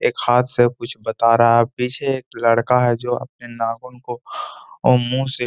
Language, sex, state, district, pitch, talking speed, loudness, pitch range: Hindi, male, Bihar, Gaya, 120 Hz, 210 wpm, -18 LUFS, 115-125 Hz